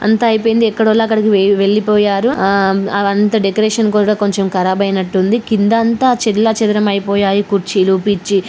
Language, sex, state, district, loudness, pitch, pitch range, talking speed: Telugu, female, Telangana, Karimnagar, -13 LUFS, 205 Hz, 195-220 Hz, 120 wpm